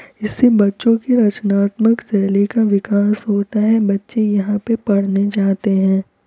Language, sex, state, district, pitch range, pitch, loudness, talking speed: Hindi, female, Uttar Pradesh, Varanasi, 200-220 Hz, 205 Hz, -16 LUFS, 145 wpm